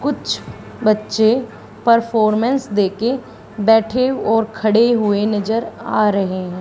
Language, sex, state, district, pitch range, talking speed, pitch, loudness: Hindi, female, Haryana, Charkhi Dadri, 210-235 Hz, 120 wpm, 220 Hz, -17 LUFS